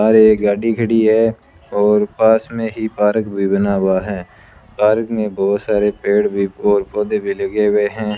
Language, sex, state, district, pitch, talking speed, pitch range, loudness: Hindi, male, Rajasthan, Bikaner, 105 Hz, 190 wpm, 100-110 Hz, -16 LUFS